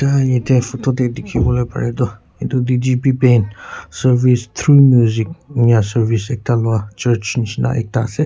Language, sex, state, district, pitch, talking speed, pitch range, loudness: Nagamese, male, Nagaland, Kohima, 120 Hz, 145 wpm, 115-130 Hz, -16 LUFS